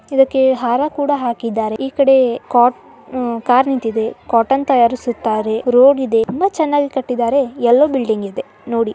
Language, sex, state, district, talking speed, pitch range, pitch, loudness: Kannada, male, Karnataka, Dharwad, 120 wpm, 230-270 Hz, 250 Hz, -15 LUFS